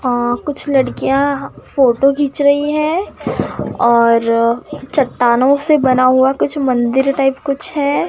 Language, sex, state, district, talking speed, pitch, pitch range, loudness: Hindi, female, Maharashtra, Gondia, 120 wpm, 270 Hz, 245-285 Hz, -14 LUFS